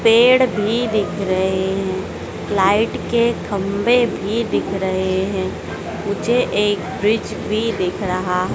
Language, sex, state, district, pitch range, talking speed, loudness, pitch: Hindi, female, Madhya Pradesh, Dhar, 190-230 Hz, 125 wpm, -19 LUFS, 205 Hz